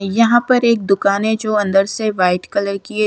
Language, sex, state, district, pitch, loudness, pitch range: Hindi, female, Punjab, Kapurthala, 210 Hz, -16 LUFS, 195-220 Hz